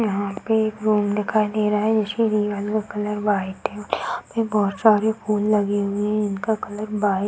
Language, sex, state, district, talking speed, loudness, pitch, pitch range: Hindi, female, Bihar, Darbhanga, 220 wpm, -22 LUFS, 210 Hz, 205-215 Hz